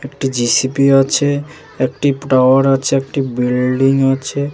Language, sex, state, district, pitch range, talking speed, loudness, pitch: Bengali, male, West Bengal, Jalpaiguri, 130-140 Hz, 120 wpm, -14 LUFS, 135 Hz